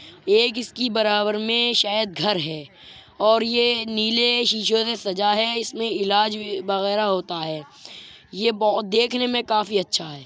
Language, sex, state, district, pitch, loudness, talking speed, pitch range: Hindi, male, Uttar Pradesh, Jyotiba Phule Nagar, 215 Hz, -21 LUFS, 160 wpm, 200-230 Hz